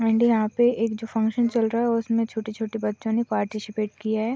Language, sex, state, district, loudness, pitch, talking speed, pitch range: Hindi, female, Maharashtra, Chandrapur, -24 LUFS, 225 Hz, 220 wpm, 215-230 Hz